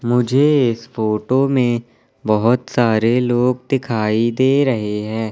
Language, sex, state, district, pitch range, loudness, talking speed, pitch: Hindi, male, Madhya Pradesh, Katni, 110-130 Hz, -17 LUFS, 125 wpm, 120 Hz